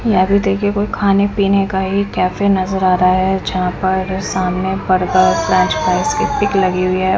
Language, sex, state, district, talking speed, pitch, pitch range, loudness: Hindi, female, Punjab, Kapurthala, 200 wpm, 190 Hz, 185-200 Hz, -15 LUFS